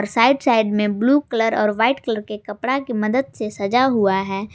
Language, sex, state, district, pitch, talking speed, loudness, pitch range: Hindi, female, Jharkhand, Garhwa, 225 Hz, 210 wpm, -19 LUFS, 210-250 Hz